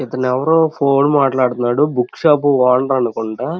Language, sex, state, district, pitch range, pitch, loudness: Telugu, male, Andhra Pradesh, Krishna, 125-145 Hz, 130 Hz, -15 LUFS